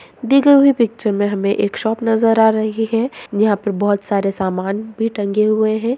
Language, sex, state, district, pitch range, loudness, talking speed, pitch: Hindi, female, Bihar, Begusarai, 205-225 Hz, -16 LUFS, 210 wpm, 215 Hz